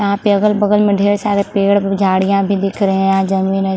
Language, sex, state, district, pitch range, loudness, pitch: Hindi, female, Chhattisgarh, Bilaspur, 195-205 Hz, -14 LUFS, 200 Hz